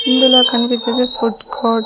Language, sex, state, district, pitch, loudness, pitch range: Telugu, female, Andhra Pradesh, Sri Satya Sai, 240 Hz, -13 LUFS, 230-255 Hz